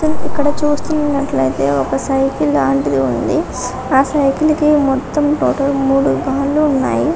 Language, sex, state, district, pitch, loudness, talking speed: Telugu, female, Telangana, Karimnagar, 275 Hz, -15 LUFS, 100 wpm